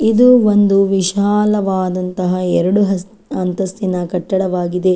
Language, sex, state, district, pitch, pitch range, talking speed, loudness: Kannada, female, Karnataka, Chamarajanagar, 190 Hz, 180-205 Hz, 85 wpm, -15 LUFS